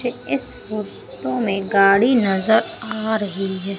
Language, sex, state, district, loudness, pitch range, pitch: Hindi, female, Madhya Pradesh, Umaria, -20 LUFS, 190-220 Hz, 195 Hz